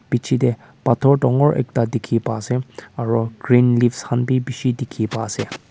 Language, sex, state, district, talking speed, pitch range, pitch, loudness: Nagamese, male, Nagaland, Kohima, 170 wpm, 115-130 Hz, 120 Hz, -19 LUFS